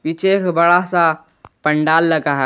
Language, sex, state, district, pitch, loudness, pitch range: Hindi, male, Jharkhand, Garhwa, 165 Hz, -15 LUFS, 155-175 Hz